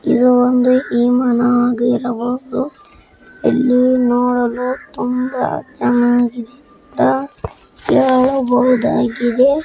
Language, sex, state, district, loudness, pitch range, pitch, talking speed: Kannada, male, Karnataka, Bijapur, -15 LUFS, 245-255 Hz, 250 Hz, 50 wpm